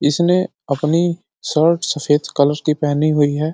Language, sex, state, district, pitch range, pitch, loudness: Hindi, male, Uttar Pradesh, Deoria, 145-170 Hz, 155 Hz, -17 LUFS